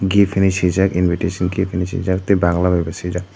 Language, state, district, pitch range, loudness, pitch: Kokborok, Tripura, Dhalai, 90-95 Hz, -18 LUFS, 90 Hz